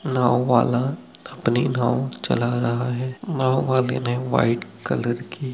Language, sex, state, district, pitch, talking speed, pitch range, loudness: Hindi, male, West Bengal, Dakshin Dinajpur, 125 Hz, 140 wpm, 120-130 Hz, -22 LUFS